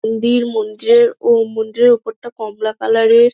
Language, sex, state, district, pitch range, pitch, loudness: Bengali, female, West Bengal, Dakshin Dinajpur, 220-240 Hz, 225 Hz, -14 LUFS